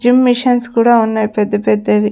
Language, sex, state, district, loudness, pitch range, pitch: Telugu, female, Andhra Pradesh, Sri Satya Sai, -13 LUFS, 205-245 Hz, 225 Hz